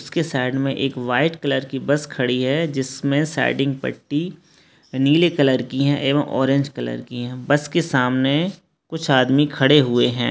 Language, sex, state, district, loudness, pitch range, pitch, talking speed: Hindi, male, Bihar, Begusarai, -20 LUFS, 130-150 Hz, 140 Hz, 170 wpm